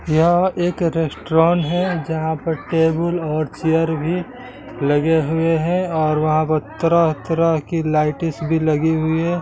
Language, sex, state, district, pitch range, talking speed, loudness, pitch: Hindi, male, Bihar, Gaya, 155-170 Hz, 145 wpm, -19 LUFS, 160 Hz